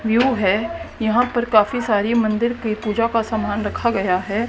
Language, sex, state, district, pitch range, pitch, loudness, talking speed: Hindi, female, Haryana, Jhajjar, 210-235 Hz, 225 Hz, -19 LUFS, 185 wpm